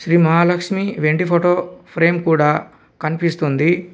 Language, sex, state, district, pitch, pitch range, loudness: Telugu, male, Telangana, Komaram Bheem, 170 Hz, 160-175 Hz, -17 LUFS